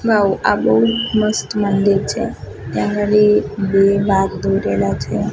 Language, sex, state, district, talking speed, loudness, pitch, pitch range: Gujarati, female, Gujarat, Gandhinagar, 125 wpm, -16 LUFS, 195 Hz, 145-210 Hz